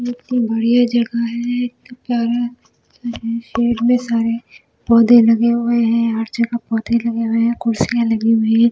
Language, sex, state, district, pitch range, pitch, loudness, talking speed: Hindi, female, Delhi, New Delhi, 230-240 Hz, 235 Hz, -17 LUFS, 150 wpm